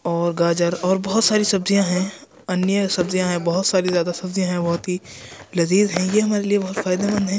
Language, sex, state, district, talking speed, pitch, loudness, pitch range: Hindi, male, Uttar Pradesh, Jyotiba Phule Nagar, 205 wpm, 185 Hz, -20 LUFS, 180-200 Hz